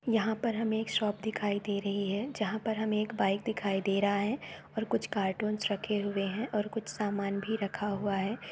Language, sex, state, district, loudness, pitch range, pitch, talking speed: Hindi, female, Uttar Pradesh, Etah, -32 LUFS, 200-220 Hz, 210 Hz, 220 wpm